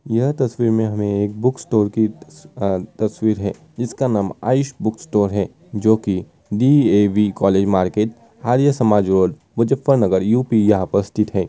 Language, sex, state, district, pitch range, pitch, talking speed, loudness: Hindi, male, Uttar Pradesh, Muzaffarnagar, 100-120 Hz, 110 Hz, 185 wpm, -18 LUFS